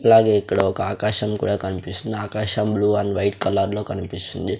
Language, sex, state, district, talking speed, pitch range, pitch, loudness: Telugu, male, Andhra Pradesh, Sri Satya Sai, 170 wpm, 95-105 Hz, 105 Hz, -21 LUFS